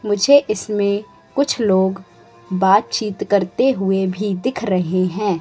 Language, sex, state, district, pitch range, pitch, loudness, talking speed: Hindi, female, Madhya Pradesh, Katni, 190-215 Hz, 200 Hz, -18 LUFS, 120 wpm